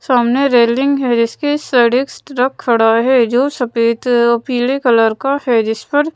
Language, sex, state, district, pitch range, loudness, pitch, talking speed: Hindi, female, Madhya Pradesh, Bhopal, 235-275 Hz, -14 LUFS, 245 Hz, 175 wpm